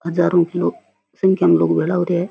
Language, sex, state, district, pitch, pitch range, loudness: Rajasthani, female, Rajasthan, Churu, 175 Hz, 170-180 Hz, -17 LUFS